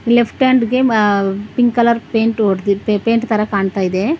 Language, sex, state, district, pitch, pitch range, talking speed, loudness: Kannada, female, Karnataka, Bangalore, 225 Hz, 200-235 Hz, 155 wpm, -15 LUFS